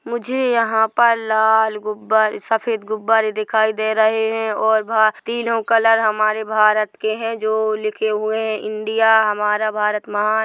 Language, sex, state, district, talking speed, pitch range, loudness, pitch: Hindi, female, Chhattisgarh, Bilaspur, 155 wpm, 215-225 Hz, -18 LUFS, 220 Hz